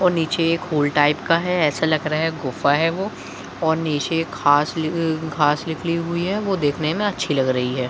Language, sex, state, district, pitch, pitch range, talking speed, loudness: Hindi, male, Bihar, Jahanabad, 160 Hz, 150-170 Hz, 230 wpm, -20 LUFS